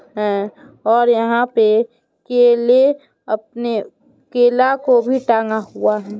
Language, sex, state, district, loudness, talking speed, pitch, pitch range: Hindi, female, Bihar, Muzaffarpur, -16 LUFS, 105 wpm, 235 Hz, 220-245 Hz